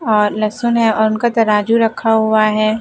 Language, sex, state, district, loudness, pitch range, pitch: Hindi, female, Bihar, Gopalganj, -14 LUFS, 215-225 Hz, 220 Hz